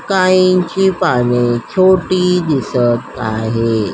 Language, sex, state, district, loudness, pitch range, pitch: Marathi, female, Maharashtra, Solapur, -14 LUFS, 120-185 Hz, 140 Hz